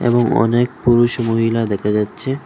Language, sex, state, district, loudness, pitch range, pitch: Bengali, male, Assam, Hailakandi, -16 LUFS, 115-120 Hz, 115 Hz